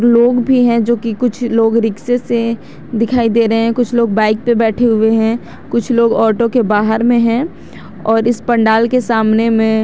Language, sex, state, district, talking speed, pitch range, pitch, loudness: Hindi, female, Jharkhand, Garhwa, 200 wpm, 225-240 Hz, 230 Hz, -13 LUFS